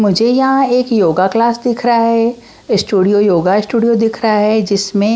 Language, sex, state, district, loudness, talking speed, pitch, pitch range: Hindi, female, Bihar, Patna, -13 LUFS, 175 wpm, 225 Hz, 205-235 Hz